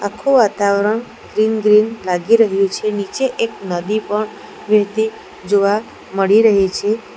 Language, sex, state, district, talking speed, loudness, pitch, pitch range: Gujarati, female, Gujarat, Valsad, 135 wpm, -16 LUFS, 210 Hz, 200-220 Hz